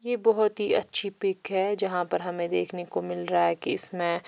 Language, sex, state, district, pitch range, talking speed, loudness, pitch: Hindi, female, Chhattisgarh, Raipur, 170-205 Hz, 225 wpm, -23 LUFS, 180 Hz